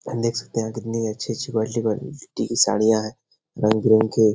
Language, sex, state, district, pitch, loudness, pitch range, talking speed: Hindi, male, Bihar, Jahanabad, 110 Hz, -22 LUFS, 110-115 Hz, 195 wpm